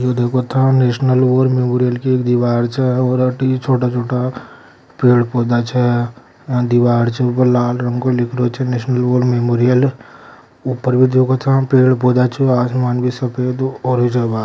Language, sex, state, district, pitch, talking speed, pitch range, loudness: Hindi, male, Rajasthan, Nagaur, 125 Hz, 165 wpm, 120-130 Hz, -15 LUFS